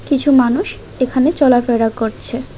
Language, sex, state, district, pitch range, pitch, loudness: Bengali, female, Tripura, West Tripura, 240-275 Hz, 255 Hz, -14 LUFS